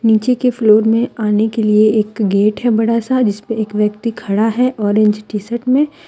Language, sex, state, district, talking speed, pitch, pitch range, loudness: Hindi, female, Jharkhand, Deoghar, 205 wpm, 220 Hz, 210-235 Hz, -15 LUFS